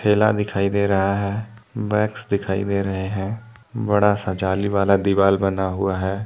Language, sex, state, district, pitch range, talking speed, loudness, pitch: Hindi, male, Jharkhand, Deoghar, 95-105 Hz, 165 wpm, -21 LUFS, 100 Hz